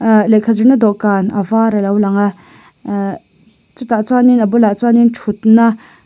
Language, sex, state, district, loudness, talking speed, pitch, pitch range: Mizo, female, Mizoram, Aizawl, -12 LUFS, 200 wpm, 220 Hz, 205-235 Hz